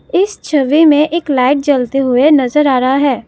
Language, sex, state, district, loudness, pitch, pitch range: Hindi, female, Assam, Kamrup Metropolitan, -12 LUFS, 280 Hz, 260-300 Hz